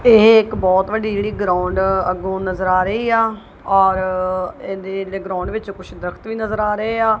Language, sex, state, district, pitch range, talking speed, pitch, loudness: Punjabi, female, Punjab, Kapurthala, 185-220 Hz, 165 wpm, 195 Hz, -18 LUFS